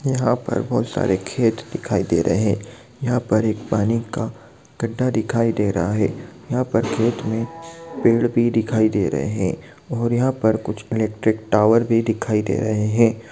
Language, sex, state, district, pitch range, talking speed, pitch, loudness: Hindi, male, Jharkhand, Sahebganj, 105-120 Hz, 180 wpm, 115 Hz, -21 LUFS